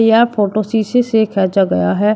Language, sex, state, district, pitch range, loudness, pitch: Hindi, male, Uttar Pradesh, Shamli, 195-225 Hz, -14 LUFS, 215 Hz